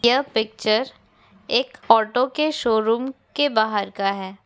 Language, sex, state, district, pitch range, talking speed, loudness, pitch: Hindi, female, Rajasthan, Nagaur, 215-260 Hz, 135 wpm, -21 LUFS, 225 Hz